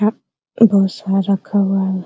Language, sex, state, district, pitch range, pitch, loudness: Hindi, female, Bihar, Araria, 195-205 Hz, 195 Hz, -16 LUFS